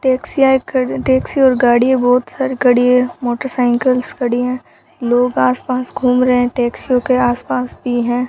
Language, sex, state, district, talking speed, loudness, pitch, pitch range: Hindi, female, Rajasthan, Bikaner, 165 wpm, -15 LUFS, 250 Hz, 245-260 Hz